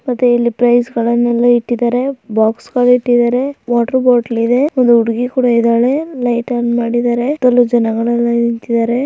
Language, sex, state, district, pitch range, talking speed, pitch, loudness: Kannada, female, Karnataka, Raichur, 235-250 Hz, 145 wpm, 240 Hz, -13 LUFS